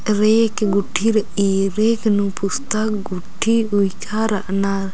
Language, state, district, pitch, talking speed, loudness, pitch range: Kurukh, Chhattisgarh, Jashpur, 205 Hz, 95 wpm, -19 LUFS, 195-220 Hz